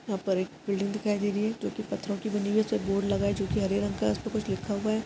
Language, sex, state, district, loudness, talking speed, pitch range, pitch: Hindi, female, Maharashtra, Pune, -29 LUFS, 345 wpm, 195-210 Hz, 205 Hz